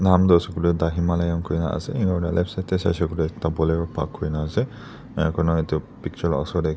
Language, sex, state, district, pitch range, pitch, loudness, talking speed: Nagamese, male, Nagaland, Dimapur, 80-90 Hz, 85 Hz, -23 LUFS, 240 wpm